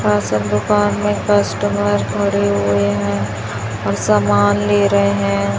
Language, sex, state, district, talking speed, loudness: Hindi, female, Chhattisgarh, Raipur, 130 wpm, -16 LUFS